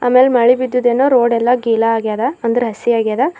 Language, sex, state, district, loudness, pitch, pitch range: Kannada, female, Karnataka, Bidar, -14 LUFS, 240 Hz, 230-250 Hz